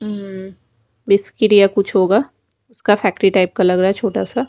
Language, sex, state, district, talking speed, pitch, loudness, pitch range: Hindi, female, Bihar, Kaimur, 175 wpm, 200 Hz, -15 LUFS, 190-210 Hz